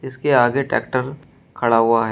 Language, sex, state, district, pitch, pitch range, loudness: Hindi, male, Uttar Pradesh, Shamli, 125 Hz, 115-135 Hz, -18 LUFS